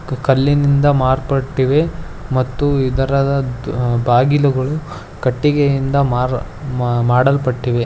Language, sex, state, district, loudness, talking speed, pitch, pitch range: Kannada, male, Karnataka, Dharwad, -16 LUFS, 70 wpm, 135 Hz, 125-140 Hz